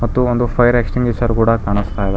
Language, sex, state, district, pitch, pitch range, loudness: Kannada, male, Karnataka, Bangalore, 120 Hz, 100-120 Hz, -16 LUFS